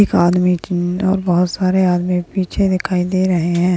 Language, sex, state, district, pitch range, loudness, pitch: Hindi, female, Maharashtra, Sindhudurg, 175-185 Hz, -16 LUFS, 180 Hz